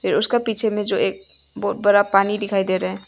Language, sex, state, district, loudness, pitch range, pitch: Hindi, female, Arunachal Pradesh, Longding, -20 LUFS, 195-220 Hz, 205 Hz